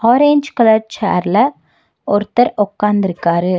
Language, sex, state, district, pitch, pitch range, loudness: Tamil, female, Tamil Nadu, Nilgiris, 210 Hz, 195-240 Hz, -14 LUFS